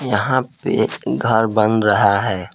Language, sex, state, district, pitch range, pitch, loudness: Hindi, male, Jharkhand, Palamu, 100-125 Hz, 110 Hz, -17 LUFS